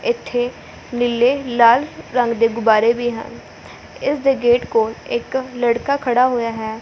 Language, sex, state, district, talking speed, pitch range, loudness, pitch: Punjabi, female, Punjab, Fazilka, 140 wpm, 230-255 Hz, -18 LUFS, 240 Hz